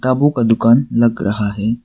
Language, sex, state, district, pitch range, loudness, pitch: Hindi, male, Arunachal Pradesh, Papum Pare, 110-125 Hz, -15 LUFS, 115 Hz